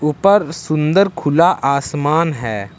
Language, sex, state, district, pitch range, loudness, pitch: Hindi, male, Jharkhand, Ranchi, 145-170 Hz, -15 LUFS, 155 Hz